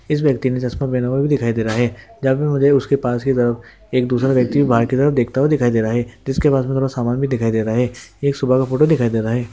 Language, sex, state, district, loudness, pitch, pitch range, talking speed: Hindi, male, Bihar, Gopalganj, -18 LUFS, 125 Hz, 120-140 Hz, 300 wpm